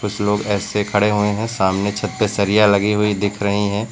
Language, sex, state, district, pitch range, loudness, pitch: Hindi, male, Uttar Pradesh, Lucknow, 100-105 Hz, -18 LUFS, 105 Hz